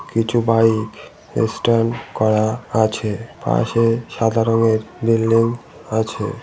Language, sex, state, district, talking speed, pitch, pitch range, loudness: Bengali, male, West Bengal, Malda, 105 wpm, 115 Hz, 110-115 Hz, -18 LUFS